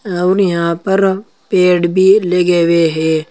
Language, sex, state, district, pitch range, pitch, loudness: Hindi, male, Uttar Pradesh, Saharanpur, 170-190 Hz, 180 Hz, -13 LUFS